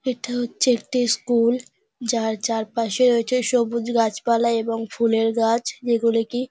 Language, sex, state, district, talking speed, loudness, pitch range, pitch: Bengali, female, West Bengal, Dakshin Dinajpur, 130 wpm, -21 LUFS, 230-245 Hz, 235 Hz